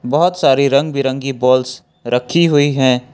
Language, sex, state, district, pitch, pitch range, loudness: Hindi, male, Jharkhand, Ranchi, 135 Hz, 130-145 Hz, -14 LUFS